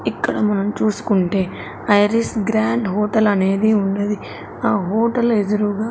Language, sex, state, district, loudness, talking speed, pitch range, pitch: Telugu, female, Andhra Pradesh, Sri Satya Sai, -18 LUFS, 110 wpm, 200-220 Hz, 210 Hz